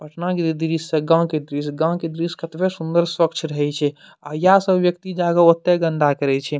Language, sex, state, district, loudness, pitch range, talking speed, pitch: Maithili, male, Bihar, Madhepura, -19 LUFS, 150-175 Hz, 225 wpm, 165 Hz